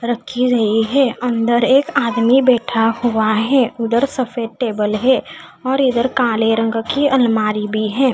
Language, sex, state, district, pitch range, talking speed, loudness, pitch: Hindi, female, Haryana, Charkhi Dadri, 225-260 Hz, 155 wpm, -16 LUFS, 240 Hz